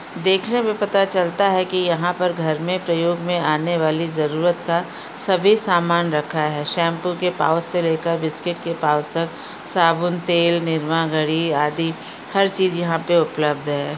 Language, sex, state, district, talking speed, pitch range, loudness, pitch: Hindi, female, Uttar Pradesh, Gorakhpur, 170 wpm, 160-180 Hz, -19 LUFS, 170 Hz